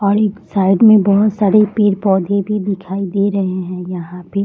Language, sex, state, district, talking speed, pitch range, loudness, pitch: Hindi, female, Bihar, Jamui, 190 wpm, 190-205 Hz, -15 LUFS, 200 Hz